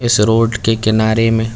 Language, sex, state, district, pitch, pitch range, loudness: Hindi, male, Chhattisgarh, Bilaspur, 115 Hz, 110-115 Hz, -14 LUFS